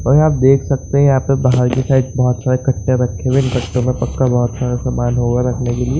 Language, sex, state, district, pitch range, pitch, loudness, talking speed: Hindi, male, Bihar, Saran, 125-135 Hz, 130 Hz, -15 LUFS, 280 wpm